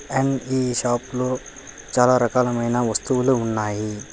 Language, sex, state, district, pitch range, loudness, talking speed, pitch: Telugu, male, Telangana, Hyderabad, 120-130 Hz, -21 LUFS, 115 wpm, 125 Hz